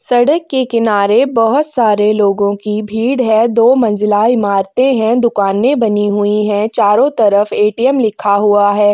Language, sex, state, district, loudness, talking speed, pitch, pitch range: Hindi, female, Chhattisgarh, Kabirdham, -12 LUFS, 170 wpm, 215 Hz, 205-240 Hz